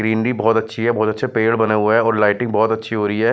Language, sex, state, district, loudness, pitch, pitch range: Hindi, male, Chandigarh, Chandigarh, -17 LUFS, 110 Hz, 110-115 Hz